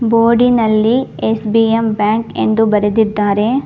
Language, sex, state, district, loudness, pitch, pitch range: Kannada, female, Karnataka, Bangalore, -13 LUFS, 225 Hz, 215-230 Hz